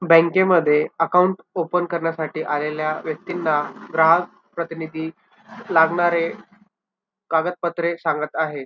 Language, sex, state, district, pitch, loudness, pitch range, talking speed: Marathi, male, Maharashtra, Dhule, 165 Hz, -21 LUFS, 160-180 Hz, 90 wpm